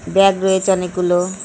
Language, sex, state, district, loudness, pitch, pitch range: Bengali, female, West Bengal, North 24 Parganas, -16 LUFS, 190 Hz, 180-195 Hz